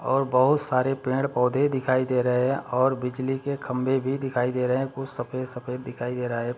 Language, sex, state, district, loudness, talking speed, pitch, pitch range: Hindi, male, Chhattisgarh, Bastar, -25 LUFS, 230 wpm, 130 Hz, 125-135 Hz